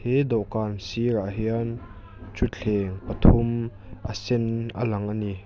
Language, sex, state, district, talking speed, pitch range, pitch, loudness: Mizo, male, Mizoram, Aizawl, 130 wpm, 100-115 Hz, 110 Hz, -26 LUFS